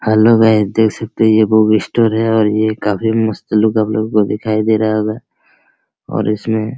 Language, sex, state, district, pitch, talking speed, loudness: Hindi, male, Bihar, Araria, 110 Hz, 175 wpm, -14 LUFS